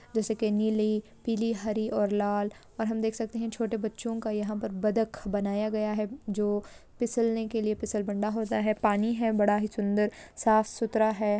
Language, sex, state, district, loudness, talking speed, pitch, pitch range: Hindi, female, Maharashtra, Pune, -29 LUFS, 195 wpm, 215 Hz, 210-225 Hz